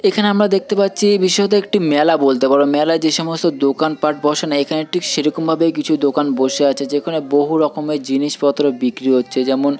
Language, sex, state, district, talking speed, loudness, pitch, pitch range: Bengali, male, West Bengal, Purulia, 180 wpm, -16 LUFS, 150 Hz, 140-165 Hz